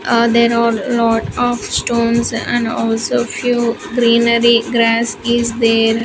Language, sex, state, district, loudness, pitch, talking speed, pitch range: English, female, Andhra Pradesh, Sri Satya Sai, -15 LUFS, 235 Hz, 130 wpm, 230-235 Hz